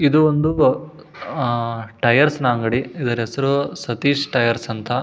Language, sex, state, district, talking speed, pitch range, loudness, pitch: Kannada, male, Karnataka, Shimoga, 130 wpm, 120-145 Hz, -19 LUFS, 130 Hz